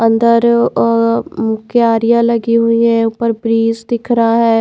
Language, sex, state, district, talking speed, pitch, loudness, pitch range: Hindi, female, Haryana, Charkhi Dadri, 155 wpm, 230 Hz, -13 LUFS, 225-235 Hz